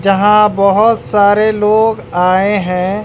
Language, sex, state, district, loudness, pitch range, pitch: Hindi, male, Bihar, West Champaran, -11 LUFS, 195-215 Hz, 205 Hz